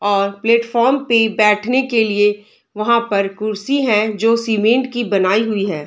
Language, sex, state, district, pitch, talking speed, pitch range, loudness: Hindi, female, Bihar, Darbhanga, 220 Hz, 165 wpm, 205-235 Hz, -16 LUFS